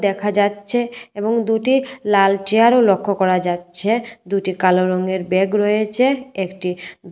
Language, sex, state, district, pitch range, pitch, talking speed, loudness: Bengali, female, Tripura, West Tripura, 185-225 Hz, 205 Hz, 125 wpm, -18 LUFS